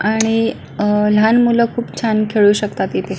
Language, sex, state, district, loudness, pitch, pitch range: Marathi, female, Maharashtra, Pune, -15 LUFS, 215 Hz, 210-230 Hz